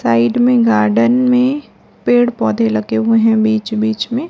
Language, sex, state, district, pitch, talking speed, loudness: Hindi, female, Chhattisgarh, Raipur, 220 Hz, 165 wpm, -14 LUFS